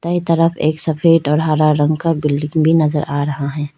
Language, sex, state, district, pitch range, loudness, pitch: Hindi, female, Arunachal Pradesh, Lower Dibang Valley, 150-165 Hz, -15 LUFS, 155 Hz